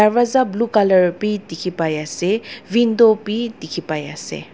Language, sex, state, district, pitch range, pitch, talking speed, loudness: Nagamese, female, Nagaland, Dimapur, 170-230 Hz, 210 Hz, 160 wpm, -18 LUFS